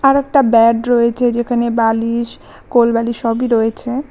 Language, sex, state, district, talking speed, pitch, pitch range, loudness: Bengali, female, West Bengal, Alipurduar, 130 wpm, 235 Hz, 230-245 Hz, -15 LUFS